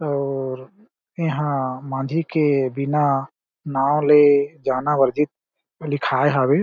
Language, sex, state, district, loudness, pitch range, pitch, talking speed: Chhattisgarhi, male, Chhattisgarh, Jashpur, -20 LUFS, 135-150 Hz, 145 Hz, 100 wpm